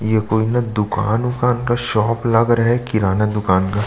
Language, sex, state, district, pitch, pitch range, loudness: Hindi, male, Chhattisgarh, Sukma, 110 Hz, 105-120 Hz, -17 LUFS